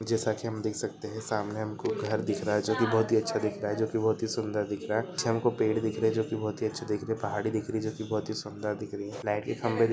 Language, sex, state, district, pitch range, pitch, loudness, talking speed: Hindi, male, Maharashtra, Dhule, 105-110 Hz, 110 Hz, -30 LUFS, 315 wpm